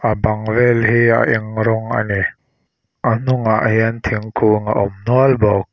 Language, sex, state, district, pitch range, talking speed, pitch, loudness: Mizo, male, Mizoram, Aizawl, 110-115 Hz, 180 wpm, 110 Hz, -16 LUFS